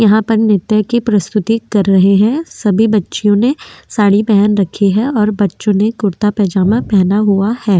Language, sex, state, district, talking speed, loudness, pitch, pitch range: Hindi, female, Maharashtra, Aurangabad, 175 wpm, -13 LUFS, 210 Hz, 200-220 Hz